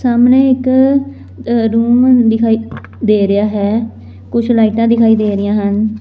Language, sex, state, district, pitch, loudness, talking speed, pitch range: Punjabi, female, Punjab, Fazilka, 225 Hz, -12 LUFS, 130 wpm, 205-240 Hz